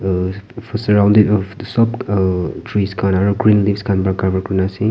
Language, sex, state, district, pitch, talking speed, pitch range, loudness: Nagamese, male, Nagaland, Kohima, 100 Hz, 195 wpm, 95-105 Hz, -16 LUFS